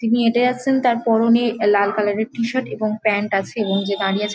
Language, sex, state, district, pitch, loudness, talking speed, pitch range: Bengali, female, West Bengal, Jhargram, 220 Hz, -19 LUFS, 220 wpm, 205-235 Hz